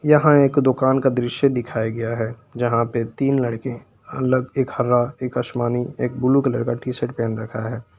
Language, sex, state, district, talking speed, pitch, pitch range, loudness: Hindi, male, Jharkhand, Palamu, 190 wpm, 125 Hz, 115-135 Hz, -21 LUFS